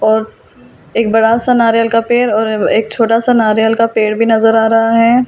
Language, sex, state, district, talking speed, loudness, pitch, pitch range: Hindi, female, Delhi, New Delhi, 230 wpm, -12 LUFS, 225 Hz, 220-230 Hz